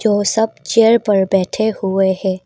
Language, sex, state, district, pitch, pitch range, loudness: Hindi, female, Arunachal Pradesh, Papum Pare, 200 Hz, 190-220 Hz, -15 LUFS